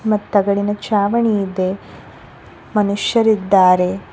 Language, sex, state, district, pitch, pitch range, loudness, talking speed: Kannada, female, Karnataka, Koppal, 205 Hz, 195-210 Hz, -16 LUFS, 75 wpm